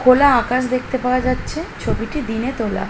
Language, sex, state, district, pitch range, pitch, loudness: Bengali, female, West Bengal, Jhargram, 245-255 Hz, 255 Hz, -19 LUFS